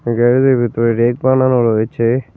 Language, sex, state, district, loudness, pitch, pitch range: Bengali, male, West Bengal, Cooch Behar, -14 LUFS, 120 Hz, 115-130 Hz